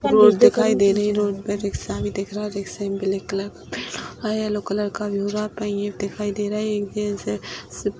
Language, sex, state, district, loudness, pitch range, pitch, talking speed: Hindi, female, Bihar, Jamui, -23 LUFS, 200-210 Hz, 205 Hz, 185 wpm